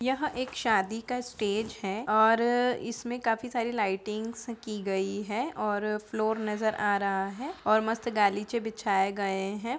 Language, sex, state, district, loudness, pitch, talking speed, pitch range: Hindi, female, Uttar Pradesh, Budaun, -29 LUFS, 220 Hz, 160 wpm, 205-235 Hz